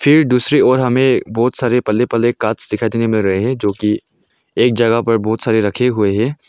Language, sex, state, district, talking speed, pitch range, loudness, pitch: Hindi, male, Arunachal Pradesh, Longding, 220 wpm, 110-125 Hz, -15 LUFS, 115 Hz